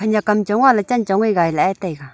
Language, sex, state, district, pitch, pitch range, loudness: Wancho, female, Arunachal Pradesh, Longding, 210 Hz, 185-220 Hz, -17 LUFS